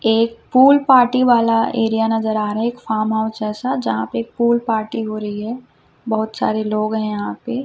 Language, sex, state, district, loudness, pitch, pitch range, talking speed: Hindi, female, Chhattisgarh, Raipur, -18 LUFS, 225 Hz, 215-235 Hz, 210 wpm